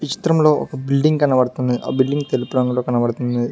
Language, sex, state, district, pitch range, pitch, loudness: Telugu, male, Telangana, Mahabubabad, 125-145 Hz, 130 Hz, -18 LUFS